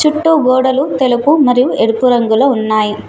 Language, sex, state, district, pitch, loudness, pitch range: Telugu, female, Telangana, Mahabubabad, 255 Hz, -12 LUFS, 235-280 Hz